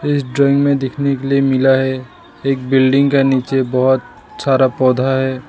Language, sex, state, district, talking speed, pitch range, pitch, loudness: Hindi, male, Assam, Sonitpur, 175 wpm, 130-140 Hz, 135 Hz, -15 LUFS